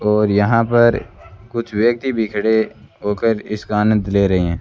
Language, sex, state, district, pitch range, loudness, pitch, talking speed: Hindi, male, Rajasthan, Bikaner, 100-115 Hz, -17 LUFS, 105 Hz, 170 wpm